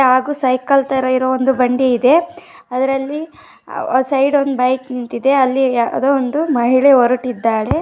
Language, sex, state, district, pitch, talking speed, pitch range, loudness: Kannada, female, Karnataka, Dharwad, 260 Hz, 115 wpm, 255-275 Hz, -15 LUFS